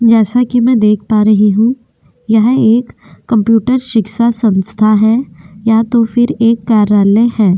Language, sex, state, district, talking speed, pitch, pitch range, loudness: Hindi, female, Uttar Pradesh, Jyotiba Phule Nagar, 150 wpm, 225 Hz, 210-235 Hz, -11 LUFS